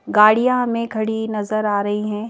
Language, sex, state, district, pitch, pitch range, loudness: Hindi, female, Madhya Pradesh, Bhopal, 215 Hz, 210-230 Hz, -19 LUFS